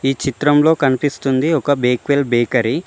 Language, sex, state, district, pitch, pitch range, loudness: Telugu, male, Telangana, Mahabubabad, 140 Hz, 130-145 Hz, -16 LUFS